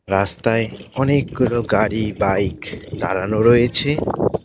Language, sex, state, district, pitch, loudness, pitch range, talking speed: Bengali, male, West Bengal, Cooch Behar, 110 Hz, -18 LUFS, 100-120 Hz, 80 wpm